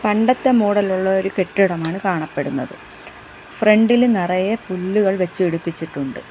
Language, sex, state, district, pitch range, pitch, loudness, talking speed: Malayalam, female, Kerala, Kollam, 170-210 Hz, 190 Hz, -18 LUFS, 115 wpm